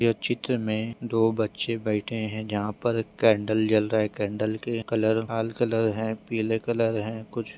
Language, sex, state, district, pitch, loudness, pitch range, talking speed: Hindi, female, Maharashtra, Dhule, 110 Hz, -26 LUFS, 110-115 Hz, 180 wpm